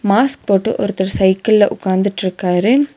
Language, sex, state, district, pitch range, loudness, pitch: Tamil, female, Tamil Nadu, Nilgiris, 190-220 Hz, -15 LUFS, 200 Hz